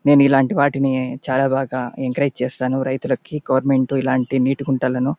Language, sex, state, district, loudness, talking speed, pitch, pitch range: Telugu, male, Andhra Pradesh, Anantapur, -19 LUFS, 150 wpm, 135 Hz, 130-140 Hz